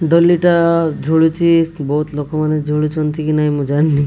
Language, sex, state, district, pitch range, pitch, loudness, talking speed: Odia, male, Odisha, Malkangiri, 150-165 Hz, 155 Hz, -15 LUFS, 130 wpm